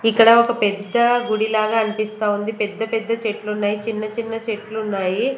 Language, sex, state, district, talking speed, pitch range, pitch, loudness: Telugu, female, Andhra Pradesh, Manyam, 145 wpm, 210-225 Hz, 220 Hz, -20 LUFS